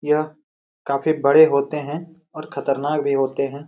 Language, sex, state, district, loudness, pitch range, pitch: Hindi, male, Jharkhand, Jamtara, -20 LUFS, 140-155 Hz, 150 Hz